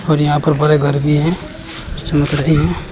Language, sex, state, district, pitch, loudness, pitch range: Hindi, male, Uttar Pradesh, Shamli, 150 Hz, -15 LUFS, 145-155 Hz